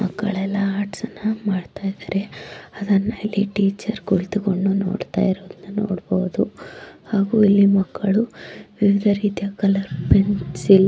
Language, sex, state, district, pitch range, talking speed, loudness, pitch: Kannada, female, Karnataka, Gulbarga, 195-205 Hz, 100 wpm, -21 LUFS, 200 Hz